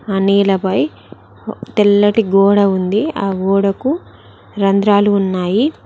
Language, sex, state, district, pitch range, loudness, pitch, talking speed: Telugu, female, Telangana, Mahabubabad, 195-205 Hz, -14 LUFS, 200 Hz, 90 wpm